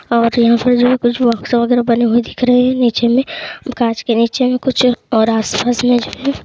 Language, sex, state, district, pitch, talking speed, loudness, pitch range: Hindi, female, Uttar Pradesh, Muzaffarnagar, 245 Hz, 240 wpm, -14 LUFS, 235-250 Hz